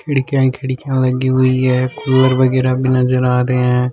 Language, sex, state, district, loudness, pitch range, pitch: Rajasthani, male, Rajasthan, Churu, -15 LUFS, 125-130 Hz, 130 Hz